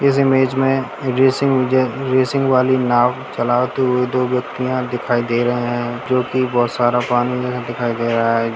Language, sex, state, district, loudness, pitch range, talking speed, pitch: Hindi, male, Bihar, Sitamarhi, -17 LUFS, 120-130 Hz, 160 wpm, 125 Hz